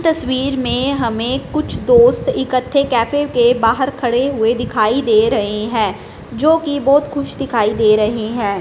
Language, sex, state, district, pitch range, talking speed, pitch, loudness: Hindi, female, Punjab, Fazilka, 225-285 Hz, 160 wpm, 255 Hz, -15 LUFS